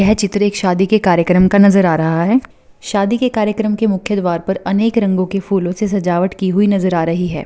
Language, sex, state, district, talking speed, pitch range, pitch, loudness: Hindi, female, Rajasthan, Churu, 240 wpm, 180-210 Hz, 195 Hz, -15 LUFS